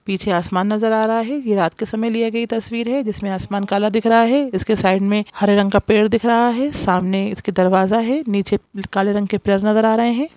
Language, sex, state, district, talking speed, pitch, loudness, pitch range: Hindi, female, Bihar, Jamui, 250 wpm, 210 Hz, -18 LUFS, 200-230 Hz